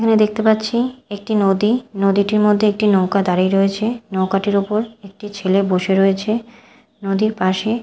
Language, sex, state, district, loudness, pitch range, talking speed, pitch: Bengali, female, Odisha, Malkangiri, -17 LUFS, 195-220 Hz, 145 wpm, 205 Hz